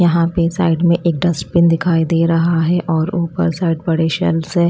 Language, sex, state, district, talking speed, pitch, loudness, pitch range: Hindi, female, Odisha, Malkangiri, 205 wpm, 170 Hz, -16 LUFS, 165-175 Hz